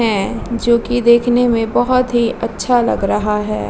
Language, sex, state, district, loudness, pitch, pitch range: Hindi, female, Bihar, Vaishali, -15 LUFS, 235 Hz, 225-245 Hz